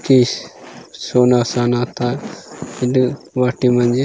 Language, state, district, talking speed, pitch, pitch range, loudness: Gondi, Chhattisgarh, Sukma, 105 wpm, 125 Hz, 120-125 Hz, -17 LUFS